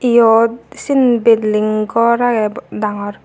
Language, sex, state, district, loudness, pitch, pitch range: Chakma, female, Tripura, Unakoti, -14 LUFS, 230 Hz, 215-240 Hz